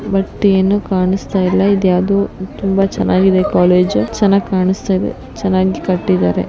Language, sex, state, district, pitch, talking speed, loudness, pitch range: Kannada, female, Karnataka, Bijapur, 190 Hz, 140 wpm, -14 LUFS, 185-195 Hz